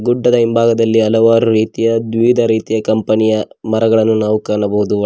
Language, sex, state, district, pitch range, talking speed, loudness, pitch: Kannada, male, Karnataka, Koppal, 110-115 Hz, 130 wpm, -13 LUFS, 110 Hz